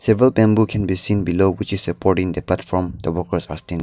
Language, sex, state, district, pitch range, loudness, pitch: English, male, Nagaland, Dimapur, 90-105 Hz, -19 LUFS, 95 Hz